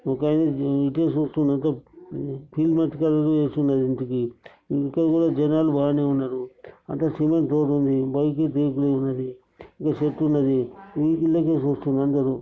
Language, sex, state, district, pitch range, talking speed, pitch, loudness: Telugu, male, Telangana, Nalgonda, 135-155 Hz, 120 wpm, 145 Hz, -23 LUFS